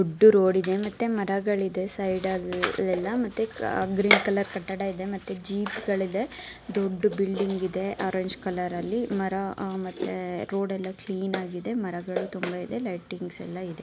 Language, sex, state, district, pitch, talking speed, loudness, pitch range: Kannada, female, Karnataka, Mysore, 195 Hz, 125 wpm, -27 LUFS, 185-200 Hz